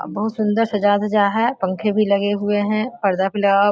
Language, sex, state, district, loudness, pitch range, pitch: Hindi, female, Bihar, Samastipur, -19 LUFS, 200-215 Hz, 205 Hz